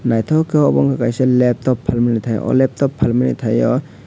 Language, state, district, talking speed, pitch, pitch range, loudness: Kokborok, Tripura, West Tripura, 175 wpm, 125 Hz, 115-130 Hz, -16 LUFS